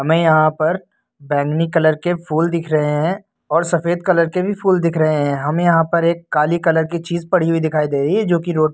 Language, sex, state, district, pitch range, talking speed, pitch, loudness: Hindi, male, Uttar Pradesh, Lucknow, 155-170 Hz, 255 wpm, 165 Hz, -17 LUFS